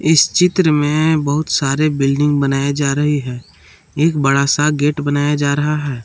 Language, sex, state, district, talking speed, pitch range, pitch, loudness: Hindi, male, Jharkhand, Palamu, 180 wpm, 140-150 Hz, 145 Hz, -15 LUFS